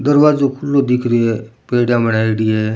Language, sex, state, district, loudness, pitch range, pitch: Rajasthani, male, Rajasthan, Churu, -15 LUFS, 110-140 Hz, 120 Hz